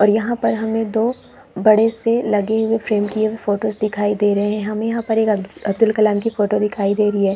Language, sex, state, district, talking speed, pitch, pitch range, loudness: Hindi, female, Chhattisgarh, Bilaspur, 235 wpm, 215 Hz, 205-225 Hz, -18 LUFS